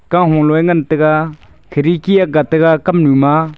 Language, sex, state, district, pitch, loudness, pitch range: Wancho, male, Arunachal Pradesh, Longding, 160 Hz, -12 LUFS, 155-170 Hz